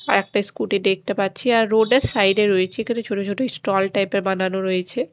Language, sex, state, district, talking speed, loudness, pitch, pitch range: Bengali, female, Odisha, Khordha, 220 wpm, -20 LUFS, 200 Hz, 195-220 Hz